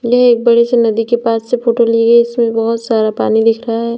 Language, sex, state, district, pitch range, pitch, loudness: Hindi, female, Uttar Pradesh, Lalitpur, 225-235 Hz, 235 Hz, -12 LUFS